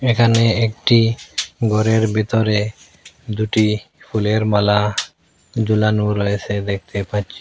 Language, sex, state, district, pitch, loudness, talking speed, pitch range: Bengali, male, Assam, Hailakandi, 105 Hz, -18 LUFS, 95 wpm, 105-110 Hz